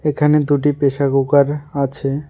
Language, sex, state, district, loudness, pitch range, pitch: Bengali, male, West Bengal, Alipurduar, -16 LUFS, 140-150 Hz, 145 Hz